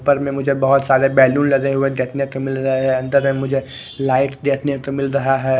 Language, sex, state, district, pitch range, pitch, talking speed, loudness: Hindi, male, Bihar, West Champaran, 135-140 Hz, 135 Hz, 235 wpm, -17 LUFS